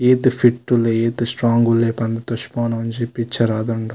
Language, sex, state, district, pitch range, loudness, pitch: Tulu, male, Karnataka, Dakshina Kannada, 115-120 Hz, -18 LUFS, 115 Hz